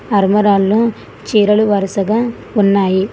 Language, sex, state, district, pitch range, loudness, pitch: Telugu, female, Telangana, Hyderabad, 195-215 Hz, -14 LUFS, 205 Hz